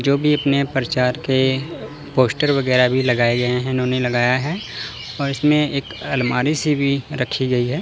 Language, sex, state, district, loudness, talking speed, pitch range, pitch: Hindi, male, Chandigarh, Chandigarh, -19 LUFS, 170 wpm, 125-140 Hz, 130 Hz